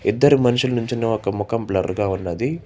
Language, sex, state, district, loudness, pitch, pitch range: Telugu, male, Telangana, Hyderabad, -20 LUFS, 115 Hz, 100-125 Hz